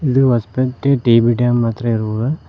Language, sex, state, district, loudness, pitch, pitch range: Kannada, male, Karnataka, Koppal, -16 LUFS, 120 Hz, 115-135 Hz